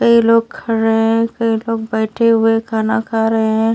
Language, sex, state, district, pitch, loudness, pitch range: Hindi, female, Delhi, New Delhi, 225 Hz, -15 LUFS, 220-230 Hz